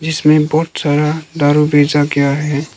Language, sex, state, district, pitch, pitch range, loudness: Hindi, male, Arunachal Pradesh, Lower Dibang Valley, 150 Hz, 145-155 Hz, -13 LUFS